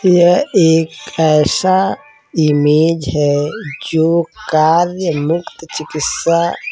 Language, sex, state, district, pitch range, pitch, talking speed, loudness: Hindi, male, Uttar Pradesh, Varanasi, 155-180 Hz, 165 Hz, 90 wpm, -14 LUFS